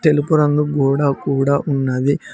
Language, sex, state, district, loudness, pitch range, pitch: Telugu, male, Telangana, Mahabubabad, -17 LUFS, 135-150 Hz, 140 Hz